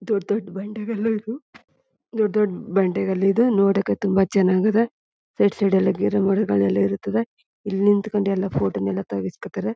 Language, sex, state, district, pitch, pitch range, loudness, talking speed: Kannada, female, Karnataka, Chamarajanagar, 200 Hz, 190-215 Hz, -21 LUFS, 150 wpm